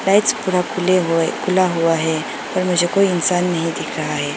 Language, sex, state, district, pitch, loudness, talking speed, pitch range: Hindi, female, Arunachal Pradesh, Lower Dibang Valley, 180 Hz, -18 LUFS, 205 wpm, 165-185 Hz